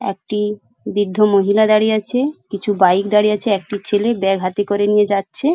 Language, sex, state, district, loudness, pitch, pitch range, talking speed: Bengali, female, West Bengal, Paschim Medinipur, -17 LUFS, 205 Hz, 200-215 Hz, 170 wpm